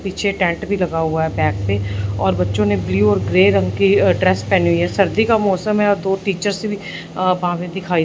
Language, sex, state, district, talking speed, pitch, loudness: Hindi, male, Punjab, Fazilka, 245 wpm, 175 Hz, -17 LUFS